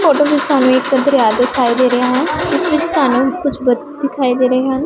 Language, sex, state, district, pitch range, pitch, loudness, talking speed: Punjabi, female, Punjab, Pathankot, 255-295 Hz, 265 Hz, -14 LUFS, 210 wpm